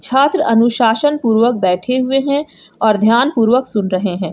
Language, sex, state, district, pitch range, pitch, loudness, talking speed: Hindi, female, Jharkhand, Garhwa, 215-270 Hz, 235 Hz, -14 LUFS, 165 wpm